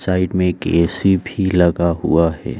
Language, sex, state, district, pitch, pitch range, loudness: Hindi, male, Bihar, Saran, 90 Hz, 85-95 Hz, -17 LUFS